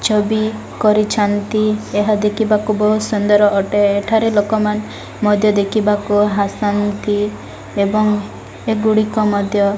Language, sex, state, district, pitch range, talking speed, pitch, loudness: Odia, female, Odisha, Malkangiri, 205-215 Hz, 105 wpm, 210 Hz, -16 LUFS